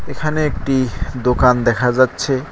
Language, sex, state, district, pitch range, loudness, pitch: Bengali, male, West Bengal, Cooch Behar, 125-140 Hz, -17 LUFS, 130 Hz